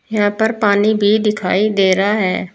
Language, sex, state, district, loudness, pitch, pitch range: Hindi, female, Uttar Pradesh, Saharanpur, -15 LUFS, 205 Hz, 200-215 Hz